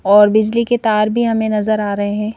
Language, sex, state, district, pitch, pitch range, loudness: Hindi, female, Madhya Pradesh, Bhopal, 215 Hz, 210-225 Hz, -15 LUFS